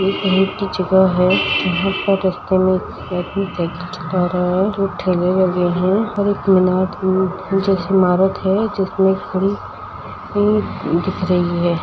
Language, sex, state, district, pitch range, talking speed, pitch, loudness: Hindi, female, Uttar Pradesh, Muzaffarnagar, 180-195 Hz, 150 wpm, 185 Hz, -17 LUFS